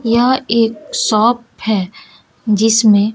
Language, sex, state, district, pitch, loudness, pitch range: Hindi, female, Bihar, West Champaran, 225 Hz, -14 LUFS, 215-235 Hz